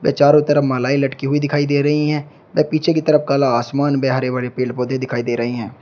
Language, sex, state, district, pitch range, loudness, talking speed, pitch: Hindi, male, Uttar Pradesh, Shamli, 125-145 Hz, -17 LUFS, 250 wpm, 140 Hz